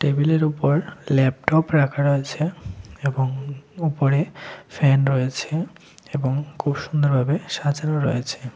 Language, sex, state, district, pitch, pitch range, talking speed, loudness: Bengali, male, Tripura, West Tripura, 145 Hz, 135-155 Hz, 100 wpm, -22 LUFS